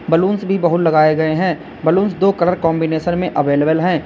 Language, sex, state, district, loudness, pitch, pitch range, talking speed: Hindi, male, Uttar Pradesh, Lalitpur, -16 LUFS, 170 Hz, 160-180 Hz, 190 wpm